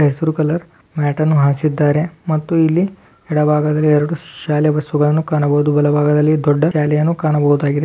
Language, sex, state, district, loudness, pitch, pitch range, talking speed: Kannada, male, Karnataka, Dharwad, -16 LUFS, 150 Hz, 150-155 Hz, 145 wpm